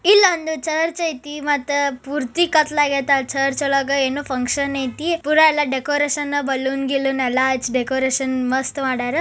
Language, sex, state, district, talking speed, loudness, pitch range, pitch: Kannada, female, Karnataka, Bijapur, 145 wpm, -19 LUFS, 265-295 Hz, 280 Hz